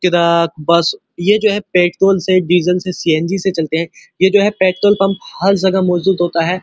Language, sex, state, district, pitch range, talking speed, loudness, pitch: Hindi, male, Uttar Pradesh, Muzaffarnagar, 170-195 Hz, 200 wpm, -14 LUFS, 185 Hz